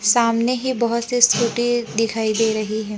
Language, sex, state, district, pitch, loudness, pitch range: Hindi, male, Maharashtra, Gondia, 230 Hz, -19 LUFS, 220-240 Hz